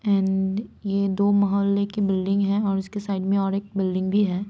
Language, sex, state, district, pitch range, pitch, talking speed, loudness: Hindi, female, Bihar, Saran, 195-200 Hz, 200 Hz, 215 wpm, -23 LUFS